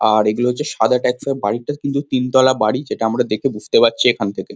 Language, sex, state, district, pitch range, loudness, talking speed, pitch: Bengali, male, West Bengal, Kolkata, 110-130 Hz, -17 LUFS, 160 wpm, 125 Hz